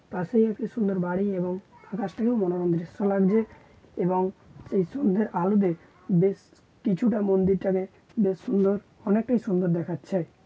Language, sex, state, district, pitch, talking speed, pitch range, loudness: Bengali, male, West Bengal, Jhargram, 195 Hz, 120 wpm, 180-210 Hz, -26 LUFS